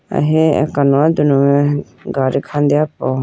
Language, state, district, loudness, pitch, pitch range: Idu Mishmi, Arunachal Pradesh, Lower Dibang Valley, -15 LUFS, 145 Hz, 140-150 Hz